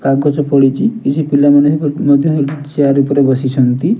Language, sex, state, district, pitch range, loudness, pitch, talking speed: Odia, male, Odisha, Nuapada, 140-145 Hz, -12 LUFS, 145 Hz, 135 wpm